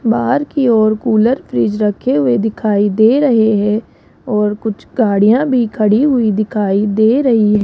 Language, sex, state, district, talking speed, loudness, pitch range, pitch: Hindi, female, Rajasthan, Jaipur, 165 wpm, -13 LUFS, 210-245 Hz, 220 Hz